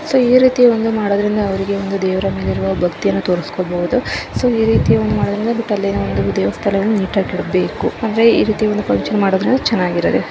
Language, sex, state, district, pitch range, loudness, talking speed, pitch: Kannada, female, Karnataka, Dharwad, 180-220 Hz, -16 LUFS, 145 wpm, 200 Hz